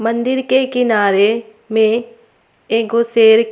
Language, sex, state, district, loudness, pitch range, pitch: Surgujia, female, Chhattisgarh, Sarguja, -15 LUFS, 220-235 Hz, 230 Hz